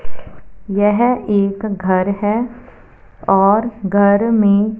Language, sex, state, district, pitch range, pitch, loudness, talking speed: Hindi, female, Punjab, Fazilka, 195-225 Hz, 205 Hz, -15 LUFS, 90 wpm